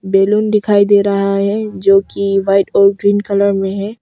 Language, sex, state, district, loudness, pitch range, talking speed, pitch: Hindi, female, Arunachal Pradesh, Longding, -13 LUFS, 195-205 Hz, 195 wpm, 200 Hz